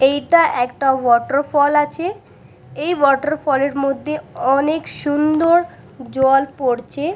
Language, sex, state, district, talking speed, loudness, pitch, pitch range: Bengali, female, West Bengal, Purulia, 100 wpm, -17 LUFS, 285 Hz, 270-305 Hz